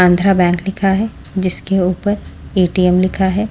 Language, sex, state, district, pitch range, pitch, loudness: Hindi, female, Maharashtra, Washim, 180-195 Hz, 190 Hz, -15 LUFS